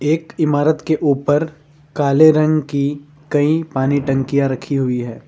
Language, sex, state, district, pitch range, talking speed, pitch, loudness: Hindi, male, Jharkhand, Ranchi, 140-155 Hz, 150 wpm, 145 Hz, -17 LUFS